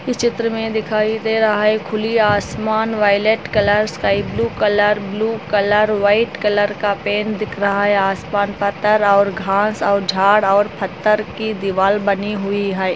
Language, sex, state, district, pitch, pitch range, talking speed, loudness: Hindi, female, Andhra Pradesh, Anantapur, 205 Hz, 200-215 Hz, 160 wpm, -17 LUFS